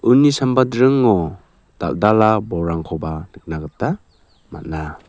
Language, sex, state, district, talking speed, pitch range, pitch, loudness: Garo, male, Meghalaya, South Garo Hills, 95 wpm, 80-120 Hz, 95 Hz, -18 LUFS